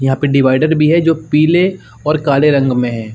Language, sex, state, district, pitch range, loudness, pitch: Hindi, male, Uttar Pradesh, Jalaun, 135-160 Hz, -13 LUFS, 145 Hz